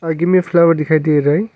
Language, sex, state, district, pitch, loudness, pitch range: Hindi, male, Arunachal Pradesh, Longding, 165 Hz, -14 LUFS, 155-180 Hz